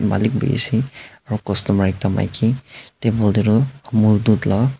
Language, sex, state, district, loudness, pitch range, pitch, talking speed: Nagamese, male, Nagaland, Dimapur, -18 LUFS, 105-125 Hz, 110 Hz, 165 wpm